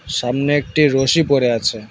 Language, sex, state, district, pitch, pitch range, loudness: Bengali, male, West Bengal, Alipurduar, 135 Hz, 120-145 Hz, -16 LUFS